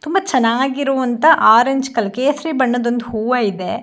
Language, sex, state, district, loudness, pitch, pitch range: Kannada, female, Karnataka, Shimoga, -16 LUFS, 255 Hz, 230-275 Hz